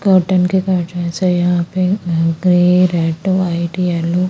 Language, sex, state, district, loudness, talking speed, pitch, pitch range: Hindi, female, Chandigarh, Chandigarh, -15 LUFS, 140 wpm, 180 Hz, 170-185 Hz